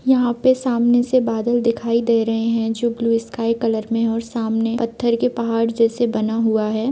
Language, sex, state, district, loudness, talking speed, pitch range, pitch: Hindi, female, Jharkhand, Sahebganj, -19 LUFS, 200 wpm, 225-240 Hz, 230 Hz